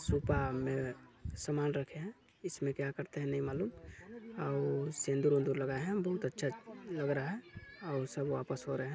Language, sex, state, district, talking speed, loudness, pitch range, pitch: Hindi, male, Chhattisgarh, Balrampur, 175 wpm, -37 LUFS, 135-165 Hz, 140 Hz